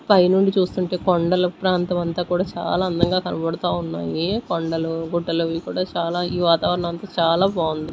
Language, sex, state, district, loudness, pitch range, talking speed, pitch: Telugu, female, Andhra Pradesh, Sri Satya Sai, -21 LUFS, 165-185 Hz, 160 wpm, 175 Hz